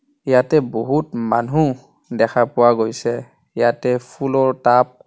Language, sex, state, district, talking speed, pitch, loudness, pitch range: Assamese, male, Assam, Kamrup Metropolitan, 120 wpm, 125 Hz, -18 LUFS, 120-135 Hz